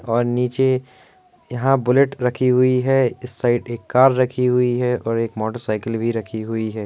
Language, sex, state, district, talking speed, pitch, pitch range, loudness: Hindi, male, Uttar Pradesh, Jalaun, 190 wpm, 125 Hz, 115-125 Hz, -19 LUFS